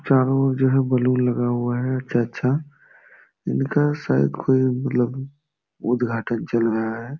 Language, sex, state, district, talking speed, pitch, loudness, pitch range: Hindi, male, Bihar, Jamui, 140 wpm, 125 Hz, -21 LUFS, 120-135 Hz